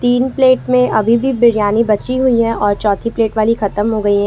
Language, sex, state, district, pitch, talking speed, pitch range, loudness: Hindi, female, Jharkhand, Ranchi, 230 Hz, 240 wpm, 210-250 Hz, -14 LUFS